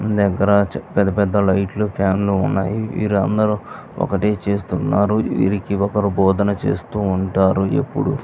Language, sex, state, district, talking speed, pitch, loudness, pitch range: Telugu, male, Andhra Pradesh, Visakhapatnam, 115 wpm, 100 Hz, -19 LUFS, 95-105 Hz